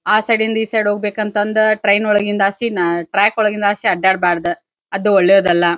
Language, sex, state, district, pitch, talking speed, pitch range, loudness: Kannada, female, Karnataka, Dharwad, 205 Hz, 165 wpm, 190-215 Hz, -15 LUFS